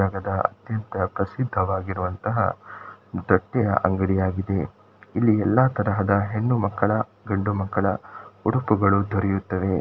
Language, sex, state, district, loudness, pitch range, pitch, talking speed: Kannada, male, Karnataka, Shimoga, -23 LUFS, 95-110 Hz, 100 Hz, 65 wpm